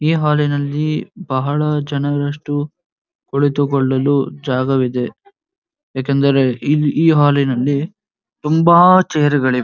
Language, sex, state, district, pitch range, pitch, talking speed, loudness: Kannada, male, Karnataka, Dharwad, 140-160 Hz, 145 Hz, 80 wpm, -16 LUFS